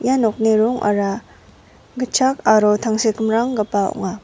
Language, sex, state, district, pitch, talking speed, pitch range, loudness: Garo, female, Meghalaya, West Garo Hills, 220 Hz, 100 wpm, 210-240 Hz, -18 LUFS